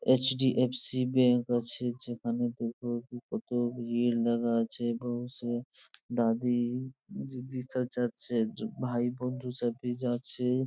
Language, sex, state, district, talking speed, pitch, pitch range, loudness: Bengali, male, West Bengal, Purulia, 90 wpm, 120 Hz, 120-125 Hz, -31 LUFS